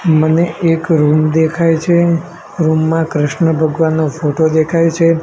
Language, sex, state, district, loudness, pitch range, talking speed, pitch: Gujarati, male, Gujarat, Gandhinagar, -13 LUFS, 155-165 Hz, 135 wpm, 160 Hz